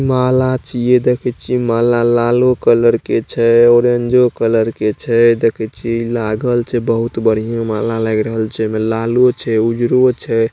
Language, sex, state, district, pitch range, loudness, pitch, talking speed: Maithili, male, Bihar, Saharsa, 115-125 Hz, -14 LUFS, 115 Hz, 160 wpm